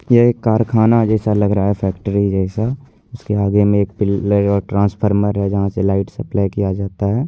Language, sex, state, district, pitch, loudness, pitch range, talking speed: Hindi, male, Bihar, Purnia, 100 Hz, -16 LUFS, 100-110 Hz, 180 wpm